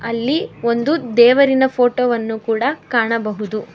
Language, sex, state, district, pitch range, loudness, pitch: Kannada, female, Karnataka, Bangalore, 230-265 Hz, -16 LUFS, 235 Hz